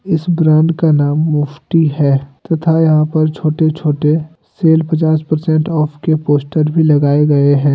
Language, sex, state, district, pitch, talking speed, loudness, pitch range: Hindi, male, Jharkhand, Deoghar, 155 Hz, 160 wpm, -13 LUFS, 150-160 Hz